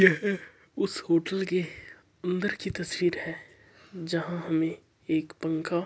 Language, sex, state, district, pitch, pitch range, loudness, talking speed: Marwari, male, Rajasthan, Churu, 170 Hz, 160-185 Hz, -30 LUFS, 135 wpm